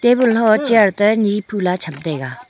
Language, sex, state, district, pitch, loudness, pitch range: Wancho, female, Arunachal Pradesh, Longding, 210 Hz, -16 LUFS, 180-220 Hz